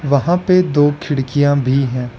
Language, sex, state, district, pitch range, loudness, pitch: Hindi, male, Arunachal Pradesh, Lower Dibang Valley, 135-150 Hz, -15 LUFS, 145 Hz